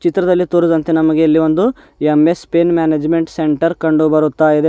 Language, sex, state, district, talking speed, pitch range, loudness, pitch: Kannada, male, Karnataka, Bidar, 165 wpm, 155-170 Hz, -14 LUFS, 160 Hz